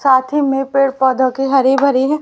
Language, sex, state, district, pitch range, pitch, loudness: Hindi, female, Haryana, Rohtak, 260-275 Hz, 270 Hz, -14 LUFS